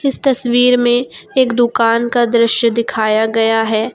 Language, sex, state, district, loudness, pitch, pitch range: Hindi, female, Jharkhand, Garhwa, -13 LUFS, 235 Hz, 225-245 Hz